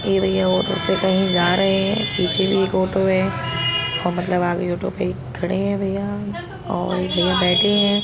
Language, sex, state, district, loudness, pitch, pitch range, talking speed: Hindi, female, Uttar Pradesh, Budaun, -19 LUFS, 185 Hz, 175-195 Hz, 200 wpm